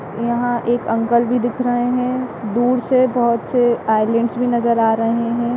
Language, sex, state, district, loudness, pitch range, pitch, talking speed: Hindi, female, Jharkhand, Jamtara, -17 LUFS, 230-245 Hz, 240 Hz, 185 wpm